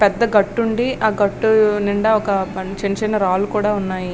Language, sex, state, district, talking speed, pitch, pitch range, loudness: Telugu, female, Andhra Pradesh, Srikakulam, 145 wpm, 205 Hz, 195-220 Hz, -18 LUFS